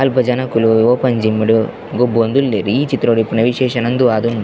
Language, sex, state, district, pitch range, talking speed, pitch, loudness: Tulu, male, Karnataka, Dakshina Kannada, 115-130 Hz, 160 wpm, 120 Hz, -15 LUFS